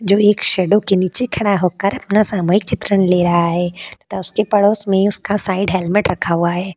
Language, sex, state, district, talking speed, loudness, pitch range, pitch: Hindi, female, Uttar Pradesh, Jalaun, 205 wpm, -16 LUFS, 180-205 Hz, 195 Hz